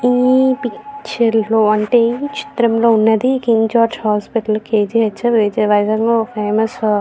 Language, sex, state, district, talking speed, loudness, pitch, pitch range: Telugu, female, Andhra Pradesh, Visakhapatnam, 170 wpm, -15 LUFS, 230 Hz, 215-240 Hz